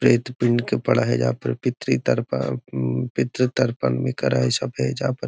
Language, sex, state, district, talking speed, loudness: Magahi, male, Bihar, Gaya, 160 wpm, -22 LUFS